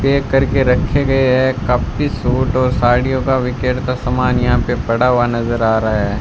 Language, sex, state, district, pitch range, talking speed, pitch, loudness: Hindi, male, Rajasthan, Bikaner, 120-130 Hz, 205 wpm, 125 Hz, -15 LUFS